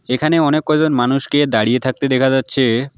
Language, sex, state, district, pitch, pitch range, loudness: Bengali, male, West Bengal, Alipurduar, 135 Hz, 125-145 Hz, -15 LUFS